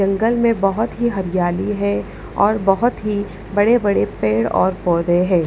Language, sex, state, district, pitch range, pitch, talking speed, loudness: Hindi, female, Punjab, Pathankot, 180-215 Hz, 195 Hz, 155 wpm, -18 LUFS